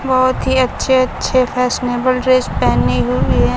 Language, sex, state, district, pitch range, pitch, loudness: Hindi, female, Bihar, Kaimur, 250-255 Hz, 255 Hz, -15 LUFS